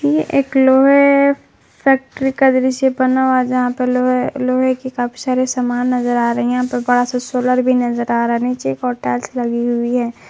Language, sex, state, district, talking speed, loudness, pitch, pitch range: Hindi, female, Jharkhand, Palamu, 220 wpm, -16 LUFS, 250 Hz, 245-260 Hz